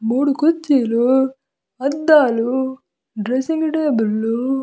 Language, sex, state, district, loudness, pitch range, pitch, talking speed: Telugu, female, Andhra Pradesh, Visakhapatnam, -18 LUFS, 235-285 Hz, 265 Hz, 80 wpm